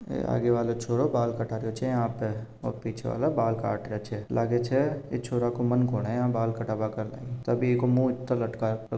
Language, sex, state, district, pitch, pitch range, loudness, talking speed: Marwari, male, Rajasthan, Nagaur, 115 Hz, 110-125 Hz, -28 LUFS, 215 wpm